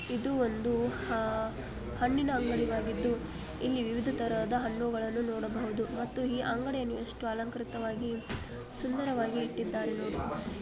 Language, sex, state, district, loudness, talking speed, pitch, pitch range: Kannada, female, Karnataka, Belgaum, -33 LUFS, 105 wpm, 235 Hz, 225-245 Hz